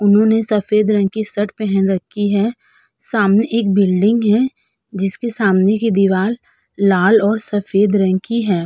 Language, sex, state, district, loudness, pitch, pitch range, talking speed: Hindi, female, Uttar Pradesh, Budaun, -16 LUFS, 205 Hz, 195-220 Hz, 145 wpm